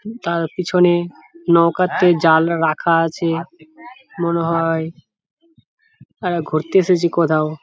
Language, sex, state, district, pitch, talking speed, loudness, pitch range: Bengali, male, West Bengal, Jhargram, 170 Hz, 100 wpm, -17 LUFS, 165-180 Hz